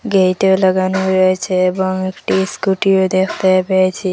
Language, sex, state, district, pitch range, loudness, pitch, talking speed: Bengali, female, Assam, Hailakandi, 185-190 Hz, -15 LUFS, 190 Hz, 115 wpm